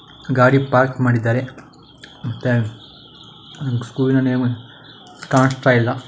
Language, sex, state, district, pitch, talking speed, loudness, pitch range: Kannada, male, Karnataka, Dakshina Kannada, 130 Hz, 80 wpm, -18 LUFS, 125-140 Hz